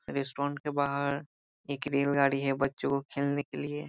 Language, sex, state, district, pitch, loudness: Hindi, male, Bihar, Jahanabad, 140 Hz, -31 LUFS